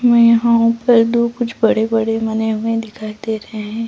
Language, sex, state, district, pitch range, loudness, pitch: Hindi, female, Chhattisgarh, Bastar, 220-235 Hz, -16 LUFS, 225 Hz